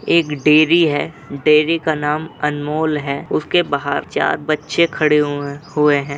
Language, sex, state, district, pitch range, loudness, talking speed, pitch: Hindi, male, Uttar Pradesh, Jalaun, 145-160 Hz, -17 LUFS, 155 wpm, 150 Hz